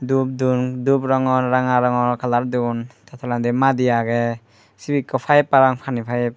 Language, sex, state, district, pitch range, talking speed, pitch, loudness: Chakma, male, Tripura, Unakoti, 120-130 Hz, 170 wpm, 125 Hz, -19 LUFS